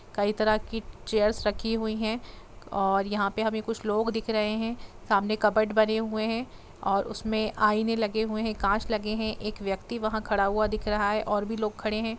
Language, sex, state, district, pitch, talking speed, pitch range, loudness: Hindi, female, Jharkhand, Jamtara, 215 Hz, 210 wpm, 210-220 Hz, -28 LUFS